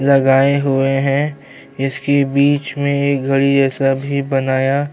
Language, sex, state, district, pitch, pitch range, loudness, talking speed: Urdu, male, Bihar, Saharsa, 140 Hz, 135-140 Hz, -16 LUFS, 135 wpm